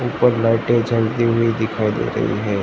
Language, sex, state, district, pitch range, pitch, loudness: Hindi, male, Gujarat, Gandhinagar, 110-120 Hz, 115 Hz, -18 LUFS